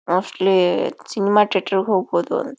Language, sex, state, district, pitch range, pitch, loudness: Kannada, female, Karnataka, Bijapur, 185-205 Hz, 190 Hz, -19 LUFS